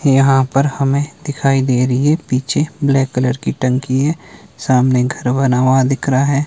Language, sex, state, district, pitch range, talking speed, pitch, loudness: Hindi, male, Himachal Pradesh, Shimla, 130-140 Hz, 185 wpm, 135 Hz, -15 LUFS